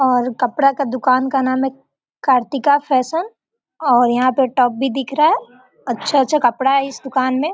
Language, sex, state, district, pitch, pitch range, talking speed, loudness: Hindi, female, Bihar, Gopalganj, 265 Hz, 255-280 Hz, 185 wpm, -17 LUFS